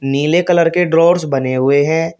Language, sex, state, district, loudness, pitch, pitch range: Hindi, male, Uttar Pradesh, Shamli, -13 LUFS, 160 Hz, 140-170 Hz